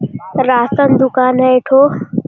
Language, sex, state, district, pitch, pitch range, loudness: Hindi, male, Bihar, Jamui, 255 Hz, 250-265 Hz, -12 LUFS